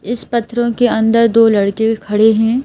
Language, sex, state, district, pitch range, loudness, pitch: Hindi, female, Madhya Pradesh, Bhopal, 220-235 Hz, -13 LUFS, 225 Hz